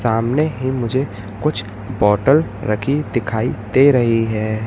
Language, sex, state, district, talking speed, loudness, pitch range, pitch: Hindi, male, Madhya Pradesh, Katni, 130 wpm, -18 LUFS, 105-130 Hz, 115 Hz